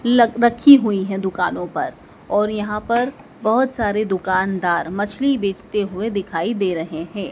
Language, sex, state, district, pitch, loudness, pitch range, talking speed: Hindi, male, Madhya Pradesh, Dhar, 210 Hz, -19 LUFS, 190-235 Hz, 155 wpm